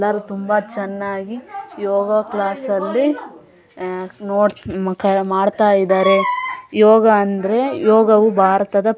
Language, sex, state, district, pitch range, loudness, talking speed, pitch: Kannada, female, Karnataka, Dharwad, 195-220 Hz, -16 LUFS, 95 wpm, 205 Hz